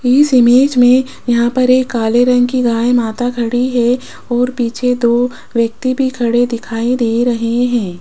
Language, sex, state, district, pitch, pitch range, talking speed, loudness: Hindi, female, Rajasthan, Jaipur, 245 Hz, 235-250 Hz, 170 wpm, -13 LUFS